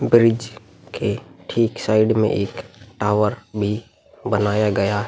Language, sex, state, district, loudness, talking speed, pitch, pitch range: Hindi, male, Uttar Pradesh, Muzaffarnagar, -20 LUFS, 130 wpm, 105 Hz, 105-110 Hz